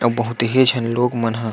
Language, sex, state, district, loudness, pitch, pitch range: Chhattisgarhi, male, Chhattisgarh, Sukma, -18 LUFS, 120 Hz, 115-125 Hz